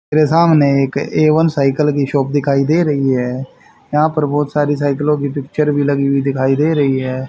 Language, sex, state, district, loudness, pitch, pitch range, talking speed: Hindi, male, Haryana, Rohtak, -15 LUFS, 145 Hz, 140-150 Hz, 215 wpm